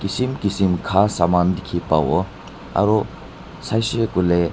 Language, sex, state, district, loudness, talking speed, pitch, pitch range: Nagamese, male, Nagaland, Dimapur, -20 LUFS, 105 wpm, 95 Hz, 90-110 Hz